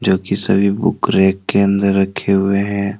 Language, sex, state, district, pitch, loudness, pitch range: Hindi, male, Jharkhand, Deoghar, 100 Hz, -15 LUFS, 95-100 Hz